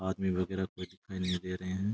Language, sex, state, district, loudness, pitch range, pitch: Rajasthani, male, Rajasthan, Churu, -35 LUFS, 90-95 Hz, 95 Hz